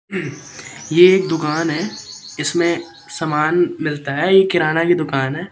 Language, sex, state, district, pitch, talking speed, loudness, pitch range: Hindi, male, Madhya Pradesh, Katni, 165 Hz, 140 wpm, -17 LUFS, 150-175 Hz